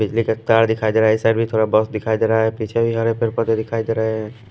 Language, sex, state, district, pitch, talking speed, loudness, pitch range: Hindi, male, Punjab, Pathankot, 110 Hz, 335 wpm, -18 LUFS, 110-115 Hz